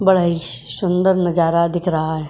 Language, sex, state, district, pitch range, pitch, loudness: Hindi, female, Uttar Pradesh, Jyotiba Phule Nagar, 160-180 Hz, 170 Hz, -18 LUFS